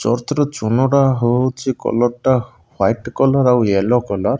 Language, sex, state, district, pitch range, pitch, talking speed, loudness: Odia, male, Odisha, Malkangiri, 120-130 Hz, 125 Hz, 165 wpm, -17 LUFS